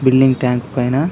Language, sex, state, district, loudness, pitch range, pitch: Telugu, male, Telangana, Karimnagar, -16 LUFS, 125-135 Hz, 130 Hz